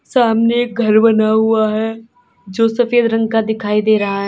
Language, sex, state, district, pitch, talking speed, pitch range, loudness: Hindi, female, Uttar Pradesh, Lalitpur, 225 Hz, 180 wpm, 215-230 Hz, -14 LUFS